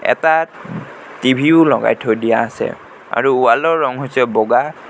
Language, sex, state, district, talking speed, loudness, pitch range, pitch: Assamese, male, Assam, Sonitpur, 160 wpm, -15 LUFS, 115-160 Hz, 135 Hz